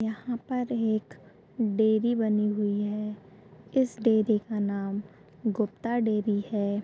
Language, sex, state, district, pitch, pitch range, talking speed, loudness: Hindi, female, Chhattisgarh, Bastar, 215 Hz, 205-225 Hz, 125 wpm, -28 LUFS